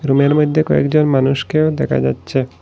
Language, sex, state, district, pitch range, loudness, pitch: Bengali, male, Assam, Hailakandi, 135-150 Hz, -15 LUFS, 140 Hz